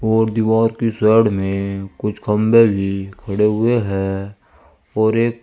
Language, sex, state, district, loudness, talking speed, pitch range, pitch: Hindi, male, Uttar Pradesh, Saharanpur, -17 LUFS, 145 wpm, 100-115 Hz, 105 Hz